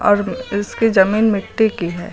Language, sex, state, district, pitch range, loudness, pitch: Hindi, female, Uttar Pradesh, Lucknow, 190-220 Hz, -17 LUFS, 205 Hz